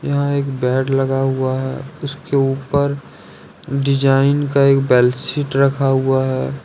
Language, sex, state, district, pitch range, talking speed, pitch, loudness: Hindi, male, Jharkhand, Ranchi, 130-140 Hz, 145 wpm, 135 Hz, -17 LUFS